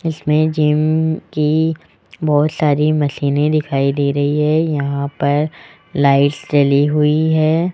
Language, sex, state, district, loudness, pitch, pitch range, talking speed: Hindi, male, Rajasthan, Jaipur, -16 LUFS, 150 Hz, 145-155 Hz, 125 wpm